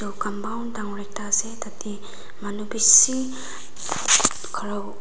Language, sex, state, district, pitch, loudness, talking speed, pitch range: Nagamese, female, Nagaland, Dimapur, 210 Hz, -20 LUFS, 95 wpm, 205-225 Hz